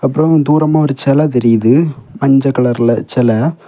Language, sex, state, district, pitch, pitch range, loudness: Tamil, male, Tamil Nadu, Kanyakumari, 135 Hz, 120-155 Hz, -12 LUFS